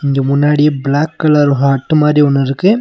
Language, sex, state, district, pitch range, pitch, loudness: Tamil, male, Tamil Nadu, Nilgiris, 140-150 Hz, 145 Hz, -12 LUFS